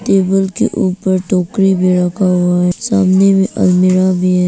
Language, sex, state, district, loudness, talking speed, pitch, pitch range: Hindi, female, Arunachal Pradesh, Papum Pare, -13 LUFS, 175 wpm, 185 Hz, 180-190 Hz